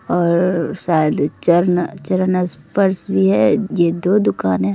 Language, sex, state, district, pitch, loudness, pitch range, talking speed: Hindi, female, Bihar, Begusarai, 180 Hz, -16 LUFS, 170-190 Hz, 115 wpm